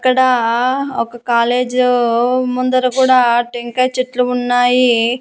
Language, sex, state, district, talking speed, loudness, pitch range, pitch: Telugu, female, Andhra Pradesh, Annamaya, 90 wpm, -14 LUFS, 240-255 Hz, 250 Hz